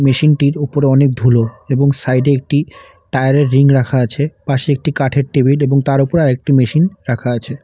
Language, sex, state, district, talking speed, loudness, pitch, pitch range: Bengali, male, West Bengal, Alipurduar, 175 wpm, -14 LUFS, 140 Hz, 130-145 Hz